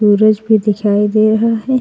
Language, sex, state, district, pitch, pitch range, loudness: Hindi, female, Uttar Pradesh, Jalaun, 215 Hz, 210-220 Hz, -13 LUFS